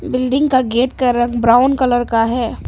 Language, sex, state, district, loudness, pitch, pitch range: Hindi, female, Arunachal Pradesh, Papum Pare, -15 LUFS, 245 Hz, 235-255 Hz